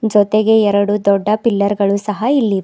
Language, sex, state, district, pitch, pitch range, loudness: Kannada, female, Karnataka, Bidar, 210 Hz, 200-220 Hz, -14 LUFS